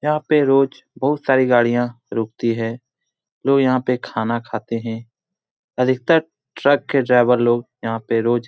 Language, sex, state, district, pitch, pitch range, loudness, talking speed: Hindi, male, Bihar, Jamui, 125 Hz, 115-135 Hz, -19 LUFS, 165 wpm